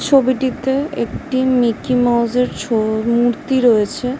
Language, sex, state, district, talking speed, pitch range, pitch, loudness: Bengali, female, West Bengal, Jhargram, 130 wpm, 235-260 Hz, 250 Hz, -17 LUFS